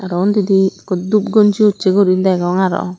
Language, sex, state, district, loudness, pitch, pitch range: Chakma, female, Tripura, Dhalai, -14 LUFS, 190 Hz, 185-205 Hz